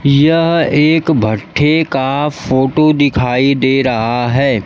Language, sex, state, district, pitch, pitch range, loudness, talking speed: Hindi, male, Bihar, Kaimur, 140 Hz, 130-155 Hz, -12 LUFS, 115 wpm